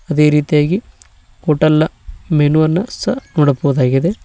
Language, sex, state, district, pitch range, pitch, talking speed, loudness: Kannada, male, Karnataka, Koppal, 140-165 Hz, 150 Hz, 100 wpm, -15 LUFS